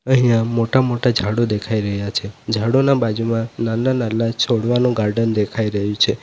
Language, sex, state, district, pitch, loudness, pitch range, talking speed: Gujarati, male, Gujarat, Valsad, 115 Hz, -18 LUFS, 110-120 Hz, 135 wpm